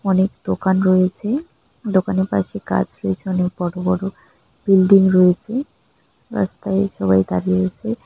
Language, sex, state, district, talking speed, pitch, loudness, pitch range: Bengali, female, West Bengal, Jalpaiguri, 125 wpm, 190 Hz, -18 LUFS, 175-195 Hz